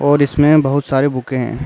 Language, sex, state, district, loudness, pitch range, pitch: Hindi, male, Uttar Pradesh, Varanasi, -14 LUFS, 130-145 Hz, 140 Hz